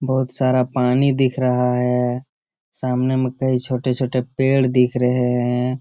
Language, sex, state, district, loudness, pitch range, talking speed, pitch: Hindi, male, Bihar, Jamui, -19 LUFS, 125-130 Hz, 145 wpm, 125 Hz